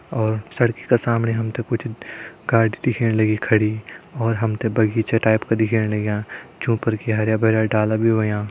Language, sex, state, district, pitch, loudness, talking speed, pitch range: Hindi, male, Uttarakhand, Tehri Garhwal, 110 Hz, -20 LUFS, 175 wpm, 110-115 Hz